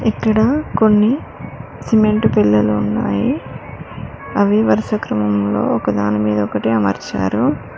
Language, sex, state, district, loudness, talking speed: Telugu, female, Telangana, Mahabubabad, -16 LUFS, 100 wpm